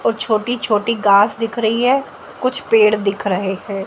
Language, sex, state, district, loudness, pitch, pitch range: Hindi, male, Delhi, New Delhi, -17 LUFS, 215 Hz, 200-235 Hz